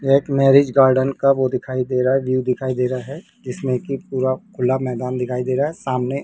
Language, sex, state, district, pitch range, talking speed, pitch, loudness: Hindi, male, Rajasthan, Jaipur, 125-135 Hz, 240 wpm, 130 Hz, -19 LUFS